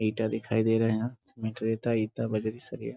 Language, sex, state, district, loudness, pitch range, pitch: Hindi, male, Bihar, Sitamarhi, -30 LUFS, 110-115 Hz, 110 Hz